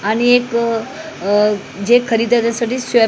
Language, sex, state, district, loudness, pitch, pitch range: Marathi, female, Maharashtra, Mumbai Suburban, -16 LUFS, 230 Hz, 210-240 Hz